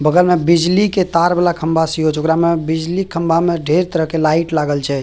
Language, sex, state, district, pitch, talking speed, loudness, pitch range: Maithili, male, Bihar, Purnia, 165 Hz, 250 wpm, -15 LUFS, 160-175 Hz